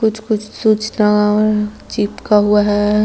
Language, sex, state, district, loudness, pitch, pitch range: Hindi, female, Chhattisgarh, Kabirdham, -15 LUFS, 210 Hz, 210-215 Hz